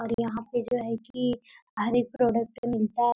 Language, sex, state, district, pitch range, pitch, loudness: Hindi, female, Bihar, Gopalganj, 230-245 Hz, 240 Hz, -28 LUFS